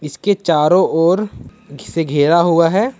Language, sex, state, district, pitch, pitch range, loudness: Hindi, male, Jharkhand, Ranchi, 170 Hz, 160-195 Hz, -14 LUFS